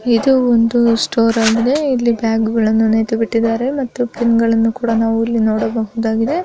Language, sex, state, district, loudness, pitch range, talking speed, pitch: Kannada, female, Karnataka, Bijapur, -15 LUFS, 225-240 Hz, 110 wpm, 230 Hz